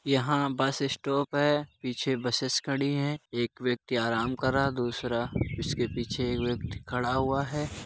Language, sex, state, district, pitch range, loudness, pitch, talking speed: Hindi, male, Uttar Pradesh, Muzaffarnagar, 120-140 Hz, -29 LUFS, 130 Hz, 170 wpm